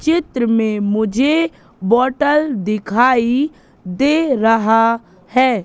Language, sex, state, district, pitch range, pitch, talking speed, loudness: Hindi, female, Madhya Pradesh, Katni, 220-280 Hz, 235 Hz, 85 wpm, -16 LUFS